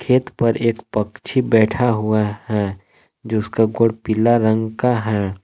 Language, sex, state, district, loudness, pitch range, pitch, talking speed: Hindi, male, Jharkhand, Palamu, -19 LUFS, 105-115 Hz, 110 Hz, 145 wpm